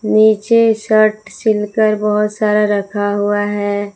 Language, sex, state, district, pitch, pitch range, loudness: Hindi, female, Jharkhand, Palamu, 210 Hz, 205-215 Hz, -14 LUFS